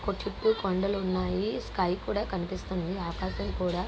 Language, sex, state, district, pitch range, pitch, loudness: Telugu, female, Andhra Pradesh, Guntur, 180-200 Hz, 190 Hz, -31 LUFS